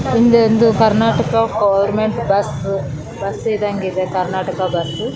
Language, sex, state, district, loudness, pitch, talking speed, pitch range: Kannada, female, Karnataka, Raichur, -16 LUFS, 195 Hz, 115 wpm, 185-220 Hz